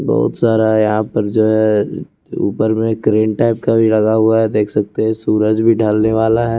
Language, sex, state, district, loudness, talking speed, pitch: Hindi, male, Chandigarh, Chandigarh, -14 LUFS, 210 wpm, 110 Hz